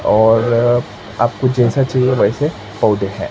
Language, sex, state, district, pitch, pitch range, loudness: Hindi, male, Maharashtra, Mumbai Suburban, 120 Hz, 110-130 Hz, -15 LUFS